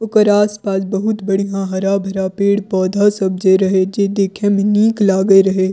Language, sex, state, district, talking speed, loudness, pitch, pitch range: Maithili, female, Bihar, Purnia, 155 wpm, -15 LUFS, 195 Hz, 190-205 Hz